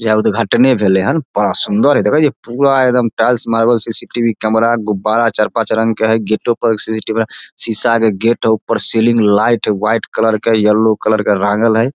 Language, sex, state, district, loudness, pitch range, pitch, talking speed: Maithili, male, Bihar, Samastipur, -13 LUFS, 110-115 Hz, 115 Hz, 200 wpm